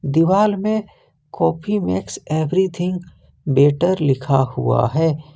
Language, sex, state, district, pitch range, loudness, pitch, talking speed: Hindi, male, Jharkhand, Ranchi, 140-185 Hz, -18 LUFS, 160 Hz, 100 wpm